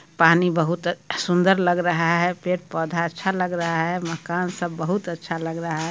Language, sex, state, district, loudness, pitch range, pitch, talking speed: Hindi, male, Bihar, Muzaffarpur, -22 LUFS, 165-180 Hz, 170 Hz, 180 wpm